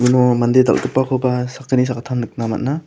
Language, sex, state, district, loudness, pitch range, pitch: Garo, male, Meghalaya, South Garo Hills, -17 LUFS, 125-130 Hz, 125 Hz